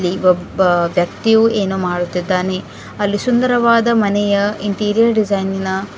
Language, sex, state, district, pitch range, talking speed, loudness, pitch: Kannada, female, Karnataka, Bidar, 185-215 Hz, 120 wpm, -16 LUFS, 200 Hz